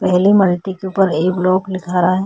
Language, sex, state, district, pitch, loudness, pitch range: Hindi, female, Uttar Pradesh, Etah, 185 Hz, -15 LUFS, 180-190 Hz